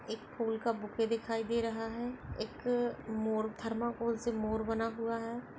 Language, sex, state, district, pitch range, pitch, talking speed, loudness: Hindi, female, Goa, North and South Goa, 225-235 Hz, 230 Hz, 170 wpm, -36 LUFS